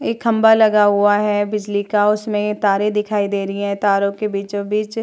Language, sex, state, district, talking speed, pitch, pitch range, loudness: Hindi, female, Uttar Pradesh, Hamirpur, 200 wpm, 205 Hz, 200-210 Hz, -17 LUFS